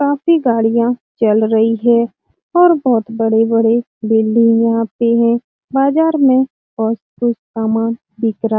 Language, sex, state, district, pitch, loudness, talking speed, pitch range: Hindi, female, Bihar, Lakhisarai, 230 Hz, -14 LUFS, 140 wpm, 225-245 Hz